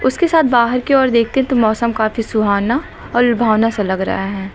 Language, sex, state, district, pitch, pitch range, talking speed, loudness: Hindi, female, Uttar Pradesh, Lucknow, 235 Hz, 215-255 Hz, 210 wpm, -15 LUFS